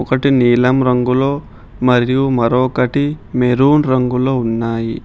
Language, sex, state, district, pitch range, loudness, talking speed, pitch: Telugu, male, Telangana, Hyderabad, 125-135 Hz, -14 LUFS, 95 wpm, 125 Hz